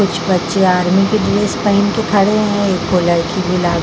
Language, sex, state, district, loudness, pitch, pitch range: Hindi, female, Bihar, Vaishali, -14 LUFS, 195 Hz, 180-205 Hz